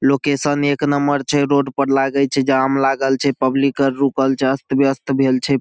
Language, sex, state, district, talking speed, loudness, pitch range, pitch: Maithili, male, Bihar, Saharsa, 205 wpm, -17 LUFS, 135-140 Hz, 135 Hz